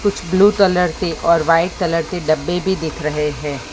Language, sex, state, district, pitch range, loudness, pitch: Hindi, male, Maharashtra, Mumbai Suburban, 155-185 Hz, -17 LUFS, 170 Hz